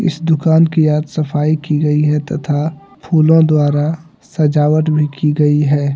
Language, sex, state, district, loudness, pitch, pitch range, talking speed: Hindi, male, Jharkhand, Deoghar, -14 LUFS, 155 Hz, 150-160 Hz, 160 wpm